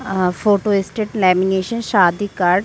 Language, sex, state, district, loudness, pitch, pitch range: Hindi, female, Bihar, Saran, -17 LUFS, 195 Hz, 185-210 Hz